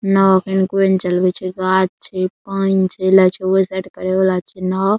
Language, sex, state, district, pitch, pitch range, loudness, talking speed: Maithili, male, Bihar, Saharsa, 190 Hz, 185-190 Hz, -16 LUFS, 215 wpm